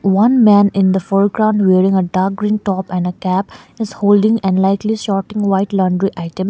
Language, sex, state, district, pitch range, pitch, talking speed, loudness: English, female, Sikkim, Gangtok, 190-205 Hz, 195 Hz, 195 wpm, -15 LUFS